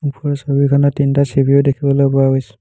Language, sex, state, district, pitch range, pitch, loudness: Assamese, male, Assam, Hailakandi, 135-140 Hz, 140 Hz, -14 LUFS